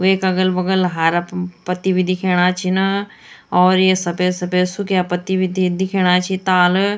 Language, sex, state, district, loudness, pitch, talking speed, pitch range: Garhwali, female, Uttarakhand, Tehri Garhwal, -17 LUFS, 185 Hz, 155 wpm, 180-190 Hz